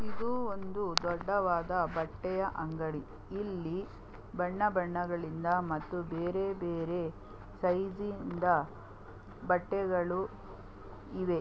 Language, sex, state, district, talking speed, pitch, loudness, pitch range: Kannada, female, Karnataka, Belgaum, 75 wpm, 175 Hz, -34 LUFS, 160-190 Hz